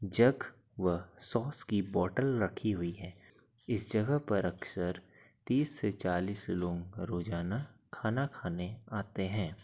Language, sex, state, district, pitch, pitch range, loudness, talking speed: Hindi, male, Uttar Pradesh, Gorakhpur, 100 Hz, 90-120 Hz, -35 LUFS, 135 wpm